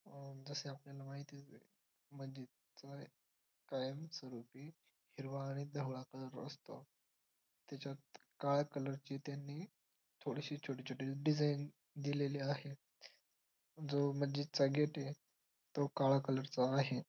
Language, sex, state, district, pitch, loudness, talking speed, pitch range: Marathi, male, Maharashtra, Dhule, 140 Hz, -42 LUFS, 110 wpm, 135-145 Hz